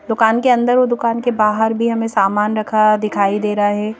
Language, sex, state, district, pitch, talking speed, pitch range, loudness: Hindi, female, Madhya Pradesh, Bhopal, 220 Hz, 225 wpm, 210-235 Hz, -16 LUFS